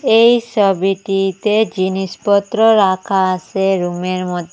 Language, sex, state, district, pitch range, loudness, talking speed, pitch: Bengali, female, Assam, Hailakandi, 185-210 Hz, -15 LUFS, 90 wpm, 195 Hz